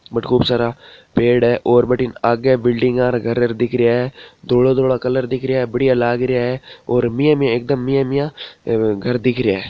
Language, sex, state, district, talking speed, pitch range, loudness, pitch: Marwari, male, Rajasthan, Nagaur, 200 wpm, 120-130 Hz, -17 LUFS, 125 Hz